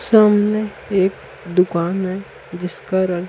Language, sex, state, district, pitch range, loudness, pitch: Hindi, male, Chhattisgarh, Raipur, 180-205 Hz, -18 LUFS, 190 Hz